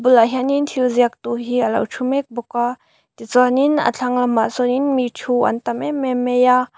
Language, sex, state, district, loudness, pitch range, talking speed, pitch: Mizo, female, Mizoram, Aizawl, -18 LUFS, 240-255 Hz, 220 wpm, 250 Hz